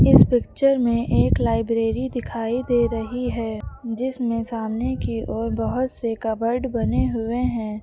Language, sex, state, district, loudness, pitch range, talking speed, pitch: Hindi, female, Uttar Pradesh, Lucknow, -22 LUFS, 225-245 Hz, 145 wpm, 230 Hz